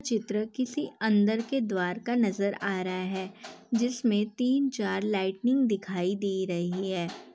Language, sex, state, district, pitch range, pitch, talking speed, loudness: Hindi, female, Uttar Pradesh, Jalaun, 190-235 Hz, 205 Hz, 155 wpm, -29 LUFS